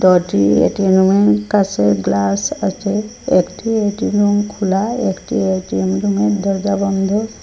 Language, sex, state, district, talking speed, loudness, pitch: Bengali, female, Assam, Hailakandi, 115 wpm, -16 LUFS, 195 Hz